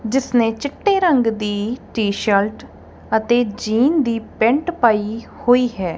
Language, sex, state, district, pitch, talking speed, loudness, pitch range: Punjabi, female, Punjab, Kapurthala, 230 Hz, 130 wpm, -18 LUFS, 215-255 Hz